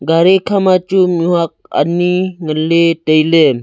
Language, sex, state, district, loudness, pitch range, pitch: Wancho, male, Arunachal Pradesh, Longding, -13 LUFS, 160-185 Hz, 170 Hz